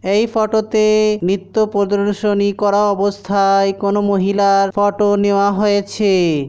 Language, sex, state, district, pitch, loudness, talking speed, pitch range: Bengali, male, West Bengal, Dakshin Dinajpur, 200 Hz, -15 LUFS, 110 wpm, 200-210 Hz